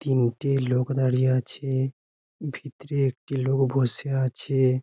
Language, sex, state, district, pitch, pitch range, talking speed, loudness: Bengali, male, West Bengal, Jhargram, 135 Hz, 130-135 Hz, 110 wpm, -25 LUFS